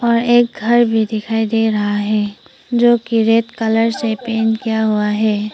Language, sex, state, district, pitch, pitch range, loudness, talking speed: Hindi, female, Arunachal Pradesh, Papum Pare, 225 Hz, 215-235 Hz, -16 LUFS, 175 wpm